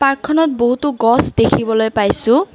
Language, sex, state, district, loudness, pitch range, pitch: Assamese, female, Assam, Kamrup Metropolitan, -15 LUFS, 225-290 Hz, 250 Hz